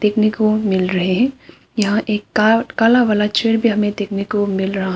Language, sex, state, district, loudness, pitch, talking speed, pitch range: Hindi, female, Arunachal Pradesh, Papum Pare, -17 LUFS, 210 Hz, 195 wpm, 200-225 Hz